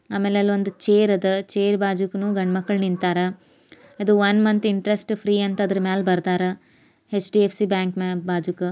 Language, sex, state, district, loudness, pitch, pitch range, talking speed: Kannada, female, Karnataka, Bijapur, -21 LUFS, 200 Hz, 185-205 Hz, 160 wpm